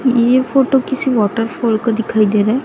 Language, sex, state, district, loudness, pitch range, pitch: Hindi, female, Chhattisgarh, Raipur, -15 LUFS, 225-260 Hz, 235 Hz